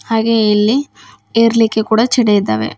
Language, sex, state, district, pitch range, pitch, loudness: Kannada, female, Karnataka, Bidar, 210-230 Hz, 225 Hz, -13 LUFS